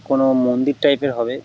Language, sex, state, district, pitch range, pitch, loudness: Bengali, male, West Bengal, North 24 Parganas, 125-140 Hz, 135 Hz, -18 LUFS